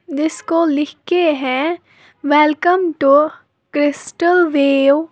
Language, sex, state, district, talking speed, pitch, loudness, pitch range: Hindi, female, Uttar Pradesh, Lalitpur, 105 wpm, 300 Hz, -15 LUFS, 285-340 Hz